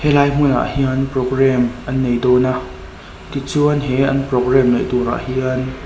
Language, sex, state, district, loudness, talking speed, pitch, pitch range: Mizo, male, Mizoram, Aizawl, -17 LUFS, 165 wpm, 130 Hz, 125-135 Hz